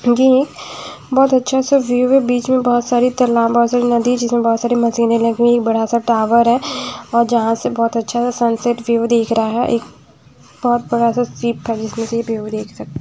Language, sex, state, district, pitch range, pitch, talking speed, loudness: Hindi, female, Haryana, Jhajjar, 230-245 Hz, 235 Hz, 220 wpm, -16 LUFS